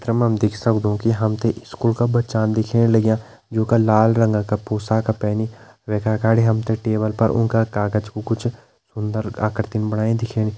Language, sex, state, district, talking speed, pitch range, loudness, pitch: Hindi, male, Uttarakhand, Tehri Garhwal, 200 wpm, 110-115 Hz, -20 LUFS, 110 Hz